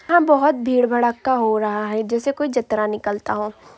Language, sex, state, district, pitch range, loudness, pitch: Hindi, female, Uttar Pradesh, Hamirpur, 215-275 Hz, -19 LUFS, 240 Hz